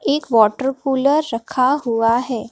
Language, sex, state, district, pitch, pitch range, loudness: Hindi, female, Madhya Pradesh, Bhopal, 255 Hz, 230-275 Hz, -17 LUFS